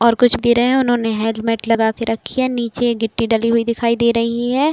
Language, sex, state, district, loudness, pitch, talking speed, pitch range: Hindi, female, Uttar Pradesh, Budaun, -17 LUFS, 235 Hz, 215 wpm, 230-240 Hz